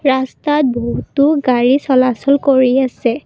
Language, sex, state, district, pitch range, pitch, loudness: Assamese, female, Assam, Kamrup Metropolitan, 255-280 Hz, 265 Hz, -14 LUFS